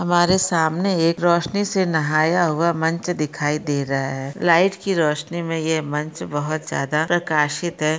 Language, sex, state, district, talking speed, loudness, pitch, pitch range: Hindi, female, Maharashtra, Pune, 165 wpm, -20 LUFS, 160 Hz, 150-175 Hz